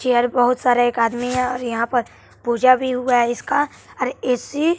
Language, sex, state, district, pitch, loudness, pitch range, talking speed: Hindi, male, Bihar, West Champaran, 245 Hz, -19 LUFS, 240-255 Hz, 215 wpm